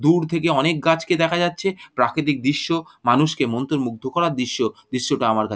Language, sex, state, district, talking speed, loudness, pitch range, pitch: Bengali, male, West Bengal, Jhargram, 160 wpm, -21 LUFS, 130-165 Hz, 155 Hz